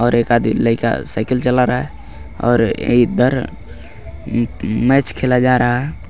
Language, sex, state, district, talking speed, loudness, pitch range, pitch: Hindi, male, Jharkhand, Garhwa, 150 wpm, -16 LUFS, 110-125 Hz, 120 Hz